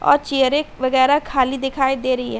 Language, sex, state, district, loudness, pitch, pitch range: Hindi, female, Uttar Pradesh, Hamirpur, -18 LUFS, 265 Hz, 260-275 Hz